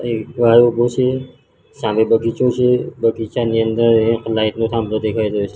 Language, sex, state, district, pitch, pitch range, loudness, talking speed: Gujarati, male, Gujarat, Gandhinagar, 115 Hz, 110-120 Hz, -16 LUFS, 170 wpm